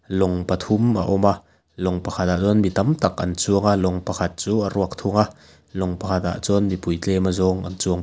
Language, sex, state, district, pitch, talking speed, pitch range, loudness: Mizo, male, Mizoram, Aizawl, 95 Hz, 240 wpm, 90-100 Hz, -21 LUFS